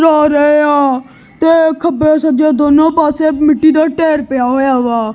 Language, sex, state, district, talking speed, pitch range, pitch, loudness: Punjabi, female, Punjab, Kapurthala, 165 wpm, 285-315 Hz, 300 Hz, -11 LUFS